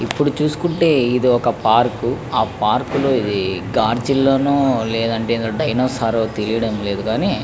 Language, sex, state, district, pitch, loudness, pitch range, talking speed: Telugu, male, Andhra Pradesh, Krishna, 120 Hz, -18 LUFS, 110-135 Hz, 120 wpm